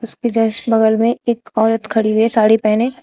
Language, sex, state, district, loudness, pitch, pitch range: Hindi, female, Uttar Pradesh, Shamli, -15 LUFS, 225 Hz, 220-235 Hz